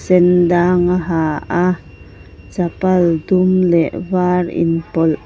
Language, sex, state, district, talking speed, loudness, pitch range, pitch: Mizo, female, Mizoram, Aizawl, 125 wpm, -15 LUFS, 160-180 Hz, 175 Hz